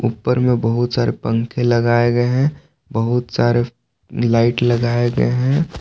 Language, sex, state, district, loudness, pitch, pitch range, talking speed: Hindi, male, Jharkhand, Palamu, -17 LUFS, 120 Hz, 120-125 Hz, 145 wpm